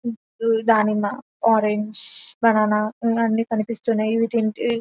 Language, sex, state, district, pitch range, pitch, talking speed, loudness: Telugu, female, Telangana, Nalgonda, 215-230 Hz, 225 Hz, 100 wpm, -21 LUFS